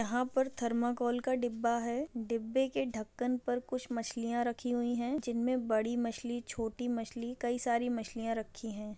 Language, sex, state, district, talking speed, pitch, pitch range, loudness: Hindi, female, Andhra Pradesh, Visakhapatnam, 165 wpm, 240 Hz, 230-245 Hz, -35 LUFS